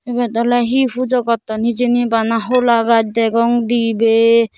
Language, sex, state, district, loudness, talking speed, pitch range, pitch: Chakma, female, Tripura, Dhalai, -15 LUFS, 145 wpm, 230-245 Hz, 235 Hz